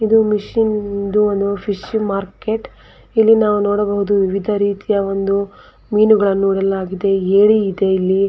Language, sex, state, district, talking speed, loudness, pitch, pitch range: Kannada, female, Karnataka, Belgaum, 130 wpm, -16 LUFS, 200 Hz, 195-210 Hz